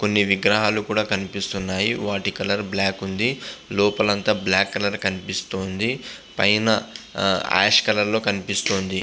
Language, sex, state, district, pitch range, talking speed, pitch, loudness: Telugu, male, Andhra Pradesh, Visakhapatnam, 95-110 Hz, 120 wpm, 100 Hz, -21 LUFS